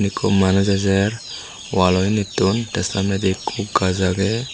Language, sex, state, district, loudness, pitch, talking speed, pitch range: Chakma, female, Tripura, Unakoti, -19 LUFS, 100 Hz, 120 wpm, 95-105 Hz